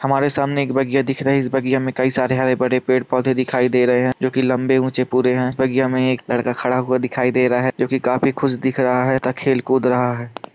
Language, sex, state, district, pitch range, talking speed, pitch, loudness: Hindi, male, Andhra Pradesh, Krishna, 125-130 Hz, 240 wpm, 130 Hz, -18 LUFS